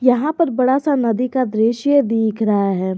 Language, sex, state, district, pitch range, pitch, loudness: Hindi, female, Jharkhand, Garhwa, 220-265 Hz, 250 Hz, -17 LUFS